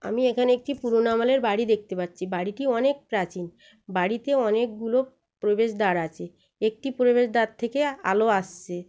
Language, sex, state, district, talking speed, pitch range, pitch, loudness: Bengali, female, West Bengal, Malda, 150 wpm, 190-250 Hz, 225 Hz, -25 LUFS